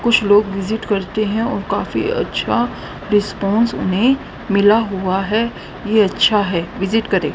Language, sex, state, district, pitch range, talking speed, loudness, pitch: Hindi, female, Haryana, Rohtak, 195-220 Hz, 145 wpm, -17 LUFS, 205 Hz